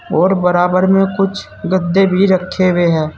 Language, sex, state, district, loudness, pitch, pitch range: Hindi, male, Uttar Pradesh, Saharanpur, -13 LUFS, 185 Hz, 180-190 Hz